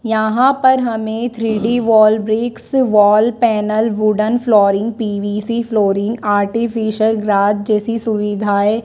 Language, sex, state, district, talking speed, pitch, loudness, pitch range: Hindi, female, Madhya Pradesh, Dhar, 115 wpm, 220 Hz, -15 LUFS, 210-230 Hz